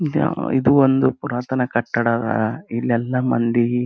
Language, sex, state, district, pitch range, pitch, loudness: Kannada, male, Karnataka, Gulbarga, 120-135 Hz, 125 Hz, -19 LUFS